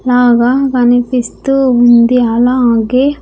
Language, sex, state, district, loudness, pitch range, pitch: Telugu, female, Andhra Pradesh, Sri Satya Sai, -10 LUFS, 240-260 Hz, 245 Hz